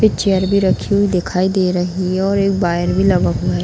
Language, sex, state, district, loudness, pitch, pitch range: Hindi, female, Bihar, Darbhanga, -16 LUFS, 190 Hz, 180-200 Hz